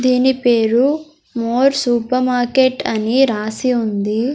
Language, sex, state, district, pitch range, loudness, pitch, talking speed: Telugu, female, Andhra Pradesh, Sri Satya Sai, 230-265 Hz, -16 LUFS, 250 Hz, 110 wpm